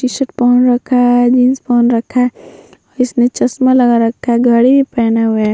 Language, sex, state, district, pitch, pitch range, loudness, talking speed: Hindi, female, Bihar, Vaishali, 245 Hz, 235-255 Hz, -12 LUFS, 195 wpm